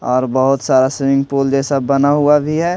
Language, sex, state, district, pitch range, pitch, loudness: Hindi, male, Delhi, New Delhi, 135-145 Hz, 140 Hz, -14 LUFS